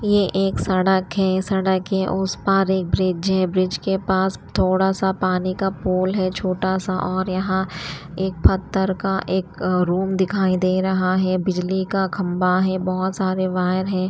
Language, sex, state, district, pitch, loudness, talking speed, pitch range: Hindi, female, Haryana, Rohtak, 190 Hz, -21 LUFS, 175 wpm, 185-190 Hz